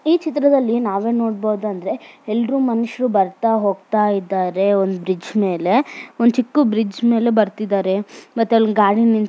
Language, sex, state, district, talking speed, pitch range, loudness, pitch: Kannada, female, Karnataka, Mysore, 80 wpm, 200-235 Hz, -18 LUFS, 220 Hz